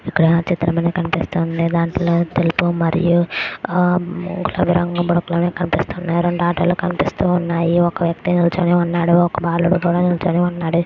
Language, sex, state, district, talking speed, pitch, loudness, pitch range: Telugu, female, Andhra Pradesh, Guntur, 100 wpm, 175 Hz, -18 LUFS, 170-175 Hz